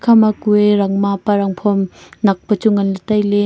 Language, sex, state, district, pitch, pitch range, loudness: Wancho, female, Arunachal Pradesh, Longding, 205 Hz, 200-210 Hz, -15 LUFS